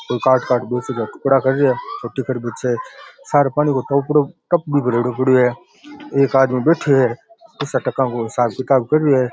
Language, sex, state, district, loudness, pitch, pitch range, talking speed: Rajasthani, male, Rajasthan, Churu, -18 LUFS, 130 Hz, 125-145 Hz, 160 wpm